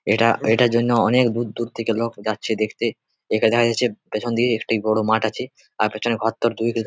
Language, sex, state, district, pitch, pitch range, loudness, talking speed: Bengali, male, West Bengal, Purulia, 115 Hz, 110-120 Hz, -21 LUFS, 185 wpm